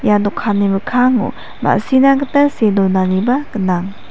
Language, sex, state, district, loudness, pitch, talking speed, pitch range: Garo, female, Meghalaya, West Garo Hills, -15 LUFS, 215 Hz, 115 wpm, 195-265 Hz